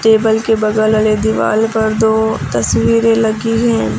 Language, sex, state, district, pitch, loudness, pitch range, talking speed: Hindi, female, Uttar Pradesh, Lucknow, 220 Hz, -13 LUFS, 215-225 Hz, 150 wpm